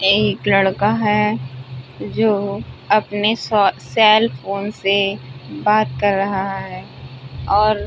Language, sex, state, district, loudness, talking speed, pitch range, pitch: Hindi, female, Uttar Pradesh, Budaun, -17 LUFS, 105 wpm, 150-210 Hz, 200 Hz